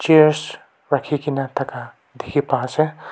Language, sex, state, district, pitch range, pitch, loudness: Nagamese, male, Nagaland, Kohima, 140-155 Hz, 150 Hz, -20 LUFS